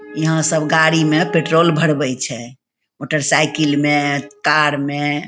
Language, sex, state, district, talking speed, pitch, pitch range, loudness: Maithili, female, Bihar, Begusarai, 135 wpm, 150 Hz, 145-160 Hz, -16 LUFS